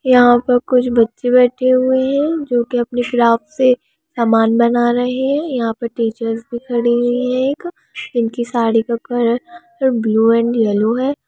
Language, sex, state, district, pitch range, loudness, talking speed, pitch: Hindi, female, Andhra Pradesh, Chittoor, 235-255 Hz, -16 LUFS, 165 wpm, 245 Hz